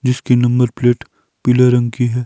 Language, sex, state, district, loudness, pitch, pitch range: Hindi, male, Himachal Pradesh, Shimla, -15 LUFS, 125 Hz, 120-125 Hz